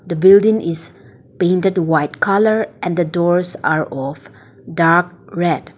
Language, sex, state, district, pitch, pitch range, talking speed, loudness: English, female, Nagaland, Dimapur, 175 Hz, 150-180 Hz, 125 wpm, -16 LUFS